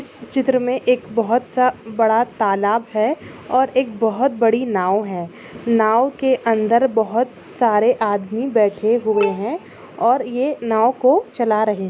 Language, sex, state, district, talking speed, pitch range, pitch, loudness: Hindi, female, Chhattisgarh, Kabirdham, 155 wpm, 215-250 Hz, 230 Hz, -18 LUFS